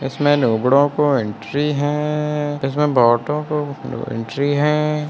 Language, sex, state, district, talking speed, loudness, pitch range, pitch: Hindi, male, Bihar, Kishanganj, 105 wpm, -18 LUFS, 135-150 Hz, 145 Hz